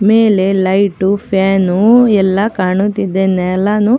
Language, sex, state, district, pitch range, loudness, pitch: Kannada, female, Karnataka, Chamarajanagar, 190-210 Hz, -12 LUFS, 195 Hz